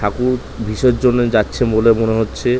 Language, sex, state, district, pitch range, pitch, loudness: Bengali, male, West Bengal, North 24 Parganas, 110-125 Hz, 115 Hz, -16 LUFS